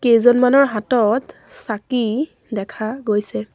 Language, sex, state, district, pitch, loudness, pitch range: Assamese, female, Assam, Sonitpur, 230 Hz, -18 LUFS, 210-255 Hz